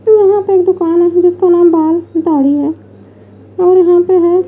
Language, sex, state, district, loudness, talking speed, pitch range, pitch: Hindi, female, Bihar, West Champaran, -10 LUFS, 200 wpm, 335-370 Hz, 355 Hz